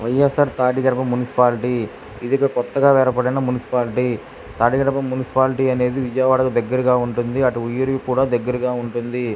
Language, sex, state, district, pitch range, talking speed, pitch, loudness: Telugu, male, Andhra Pradesh, Krishna, 120-130 Hz, 135 wpm, 125 Hz, -19 LUFS